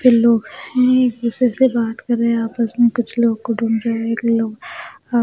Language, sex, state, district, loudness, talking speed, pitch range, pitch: Hindi, female, Maharashtra, Mumbai Suburban, -17 LUFS, 240 wpm, 230-245 Hz, 235 Hz